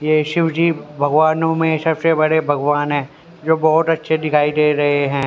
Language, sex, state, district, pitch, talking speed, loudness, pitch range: Hindi, male, Haryana, Rohtak, 155 Hz, 180 wpm, -16 LUFS, 145-160 Hz